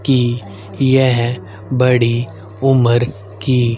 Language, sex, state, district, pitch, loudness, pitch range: Hindi, male, Haryana, Rohtak, 120 Hz, -15 LUFS, 105-130 Hz